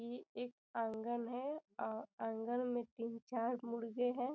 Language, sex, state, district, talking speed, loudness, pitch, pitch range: Hindi, female, Bihar, Gopalganj, 140 wpm, -42 LUFS, 240 Hz, 230-245 Hz